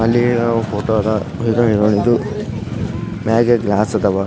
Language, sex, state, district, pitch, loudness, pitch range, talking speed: Kannada, male, Karnataka, Gulbarga, 110 Hz, -17 LUFS, 105-115 Hz, 125 wpm